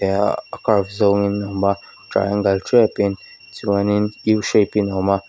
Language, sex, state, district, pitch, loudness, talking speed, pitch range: Mizo, female, Mizoram, Aizawl, 100 Hz, -19 LUFS, 170 wpm, 100-105 Hz